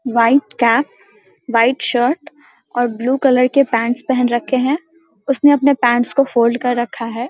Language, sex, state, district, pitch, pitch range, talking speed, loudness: Hindi, female, Bihar, Samastipur, 250 Hz, 240-275 Hz, 165 wpm, -16 LUFS